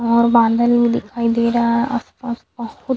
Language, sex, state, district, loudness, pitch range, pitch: Hindi, female, Chhattisgarh, Sukma, -16 LUFS, 235-240 Hz, 235 Hz